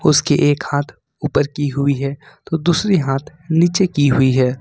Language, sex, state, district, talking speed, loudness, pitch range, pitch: Hindi, male, Jharkhand, Ranchi, 180 wpm, -17 LUFS, 135-160 Hz, 145 Hz